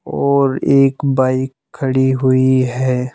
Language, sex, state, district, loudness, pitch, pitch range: Hindi, male, Madhya Pradesh, Bhopal, -15 LUFS, 130 Hz, 130-135 Hz